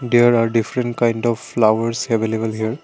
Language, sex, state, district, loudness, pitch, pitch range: English, male, Assam, Kamrup Metropolitan, -18 LUFS, 115 Hz, 110-120 Hz